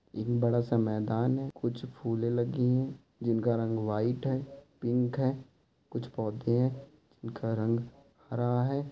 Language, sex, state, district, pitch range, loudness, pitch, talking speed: Hindi, male, Andhra Pradesh, Anantapur, 115-130 Hz, -31 LUFS, 120 Hz, 150 wpm